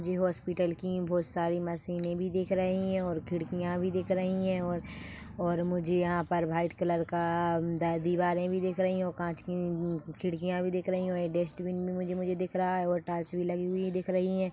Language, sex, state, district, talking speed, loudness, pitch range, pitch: Hindi, female, Chhattisgarh, Bilaspur, 240 wpm, -32 LUFS, 175-185 Hz, 180 Hz